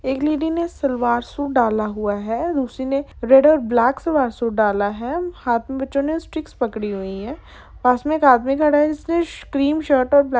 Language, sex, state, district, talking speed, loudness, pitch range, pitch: Hindi, female, Jharkhand, Sahebganj, 210 wpm, -19 LUFS, 235-300 Hz, 270 Hz